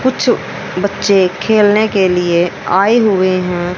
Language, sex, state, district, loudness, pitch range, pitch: Hindi, female, Haryana, Rohtak, -13 LUFS, 180-210 Hz, 190 Hz